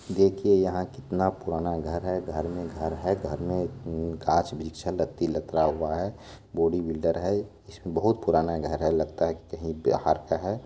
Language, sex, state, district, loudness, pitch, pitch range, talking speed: Maithili, male, Bihar, Supaul, -28 LUFS, 85 Hz, 80-95 Hz, 190 wpm